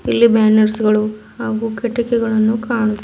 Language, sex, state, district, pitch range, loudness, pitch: Kannada, female, Karnataka, Bidar, 215-230 Hz, -16 LUFS, 220 Hz